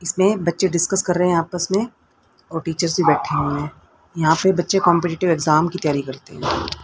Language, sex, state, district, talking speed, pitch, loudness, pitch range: Hindi, female, Haryana, Rohtak, 200 wpm, 170 Hz, -19 LUFS, 155-180 Hz